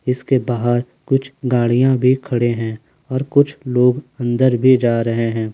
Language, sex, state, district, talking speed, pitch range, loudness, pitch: Hindi, male, Jharkhand, Ranchi, 160 wpm, 120-130 Hz, -17 LUFS, 125 Hz